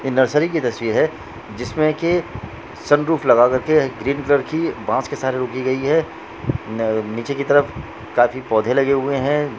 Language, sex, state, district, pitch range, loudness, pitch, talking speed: Hindi, male, Jharkhand, Jamtara, 120-145 Hz, -19 LUFS, 135 Hz, 175 wpm